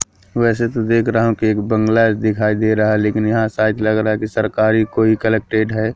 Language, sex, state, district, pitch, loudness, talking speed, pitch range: Hindi, male, Madhya Pradesh, Katni, 110 Hz, -16 LUFS, 230 wpm, 110-115 Hz